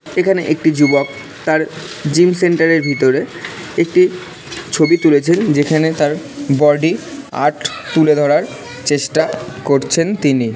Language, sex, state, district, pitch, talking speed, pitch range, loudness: Bengali, male, West Bengal, Jalpaiguri, 155 Hz, 120 wpm, 145-165 Hz, -15 LUFS